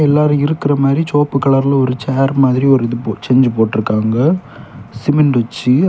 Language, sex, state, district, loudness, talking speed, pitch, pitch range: Tamil, male, Tamil Nadu, Kanyakumari, -14 LUFS, 155 wpm, 135 Hz, 120-145 Hz